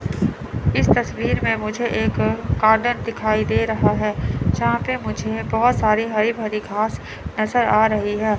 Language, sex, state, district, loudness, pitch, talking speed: Hindi, male, Chandigarh, Chandigarh, -20 LUFS, 215 Hz, 155 wpm